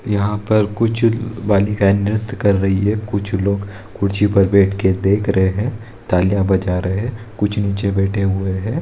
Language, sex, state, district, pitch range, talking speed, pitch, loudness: Hindi, male, Bihar, East Champaran, 95-110 Hz, 165 wpm, 100 Hz, -17 LUFS